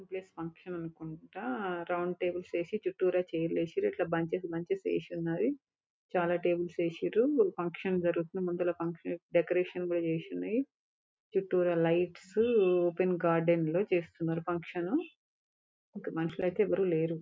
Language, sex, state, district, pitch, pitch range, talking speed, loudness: Telugu, female, Telangana, Nalgonda, 175 Hz, 170-185 Hz, 115 wpm, -32 LUFS